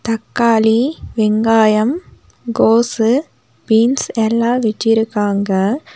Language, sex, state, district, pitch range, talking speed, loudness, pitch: Tamil, female, Tamil Nadu, Nilgiris, 220-240 Hz, 60 wpm, -15 LUFS, 225 Hz